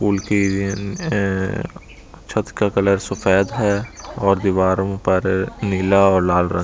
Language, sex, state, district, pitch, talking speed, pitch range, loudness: Hindi, male, Delhi, New Delhi, 100 Hz, 125 wpm, 95-100 Hz, -19 LUFS